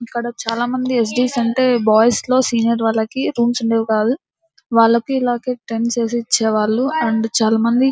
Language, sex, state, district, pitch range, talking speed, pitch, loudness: Telugu, female, Andhra Pradesh, Anantapur, 225-250 Hz, 160 wpm, 235 Hz, -17 LUFS